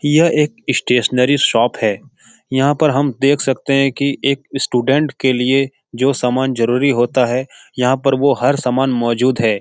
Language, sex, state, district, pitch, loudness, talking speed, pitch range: Hindi, male, Bihar, Jahanabad, 135 Hz, -15 LUFS, 175 wpm, 125-140 Hz